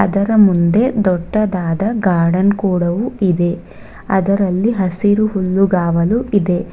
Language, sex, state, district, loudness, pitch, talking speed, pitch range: Kannada, female, Karnataka, Bangalore, -15 LUFS, 195 Hz, 90 wpm, 180-205 Hz